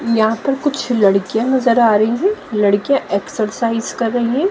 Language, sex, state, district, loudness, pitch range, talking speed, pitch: Hindi, female, Haryana, Jhajjar, -16 LUFS, 215-260 Hz, 170 wpm, 230 Hz